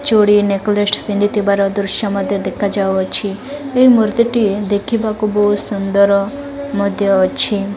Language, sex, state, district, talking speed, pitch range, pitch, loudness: Odia, female, Odisha, Malkangiri, 115 wpm, 200-220 Hz, 205 Hz, -15 LUFS